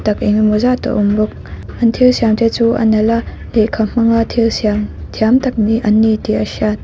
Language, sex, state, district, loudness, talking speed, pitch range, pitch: Mizo, female, Mizoram, Aizawl, -14 LUFS, 220 wpm, 215-230 Hz, 220 Hz